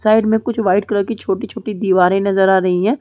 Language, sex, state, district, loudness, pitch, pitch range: Hindi, female, Chhattisgarh, Rajnandgaon, -16 LUFS, 205 Hz, 190-220 Hz